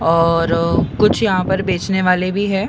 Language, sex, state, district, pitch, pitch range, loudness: Hindi, male, Maharashtra, Mumbai Suburban, 185 Hz, 165-190 Hz, -16 LUFS